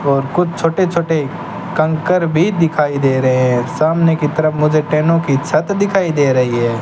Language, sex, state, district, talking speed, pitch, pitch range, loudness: Hindi, male, Rajasthan, Bikaner, 185 wpm, 155 Hz, 140-165 Hz, -15 LUFS